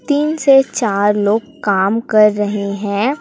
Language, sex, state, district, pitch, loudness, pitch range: Hindi, female, Chhattisgarh, Raipur, 215 Hz, -15 LUFS, 205-270 Hz